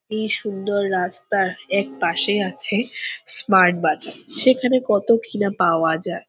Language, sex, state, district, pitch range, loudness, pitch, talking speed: Bengali, female, West Bengal, Purulia, 185-230 Hz, -19 LUFS, 205 Hz, 135 wpm